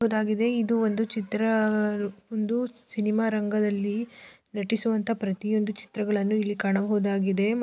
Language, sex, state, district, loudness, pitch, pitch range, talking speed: Kannada, female, Karnataka, Belgaum, -26 LUFS, 215 Hz, 205-225 Hz, 120 wpm